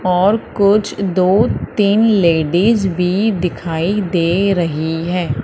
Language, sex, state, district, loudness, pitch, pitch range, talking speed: Hindi, female, Madhya Pradesh, Umaria, -15 LUFS, 185 Hz, 170-205 Hz, 110 wpm